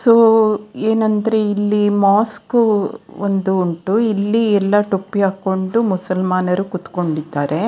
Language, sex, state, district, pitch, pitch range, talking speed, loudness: Kannada, female, Karnataka, Dakshina Kannada, 205 Hz, 190-220 Hz, 95 wpm, -17 LUFS